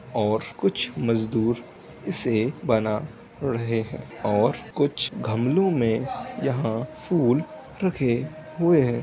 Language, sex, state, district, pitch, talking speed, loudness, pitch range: Hindi, male, Uttar Pradesh, Hamirpur, 120 Hz, 105 wpm, -24 LUFS, 115-145 Hz